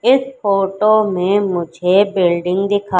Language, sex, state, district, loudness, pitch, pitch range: Hindi, female, Madhya Pradesh, Katni, -15 LUFS, 195 Hz, 180-205 Hz